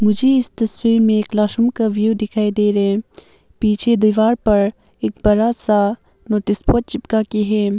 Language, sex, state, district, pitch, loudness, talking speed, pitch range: Hindi, female, Arunachal Pradesh, Papum Pare, 215 Hz, -17 LUFS, 170 wpm, 210-230 Hz